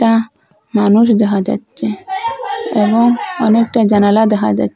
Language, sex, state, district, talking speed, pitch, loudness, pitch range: Bengali, female, Assam, Hailakandi, 115 wpm, 220 Hz, -14 LUFS, 210-230 Hz